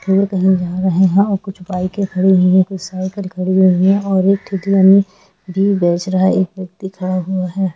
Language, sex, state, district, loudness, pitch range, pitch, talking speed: Hindi, female, Jharkhand, Jamtara, -15 LUFS, 185-195 Hz, 190 Hz, 200 wpm